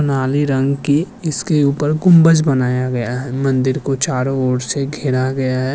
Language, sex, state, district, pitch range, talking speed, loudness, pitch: Hindi, male, Uttarakhand, Tehri Garhwal, 130-145 Hz, 175 wpm, -16 LUFS, 135 Hz